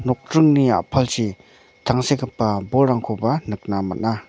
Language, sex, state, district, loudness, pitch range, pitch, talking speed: Garo, male, Meghalaya, North Garo Hills, -20 LUFS, 110-130 Hz, 120 Hz, 85 wpm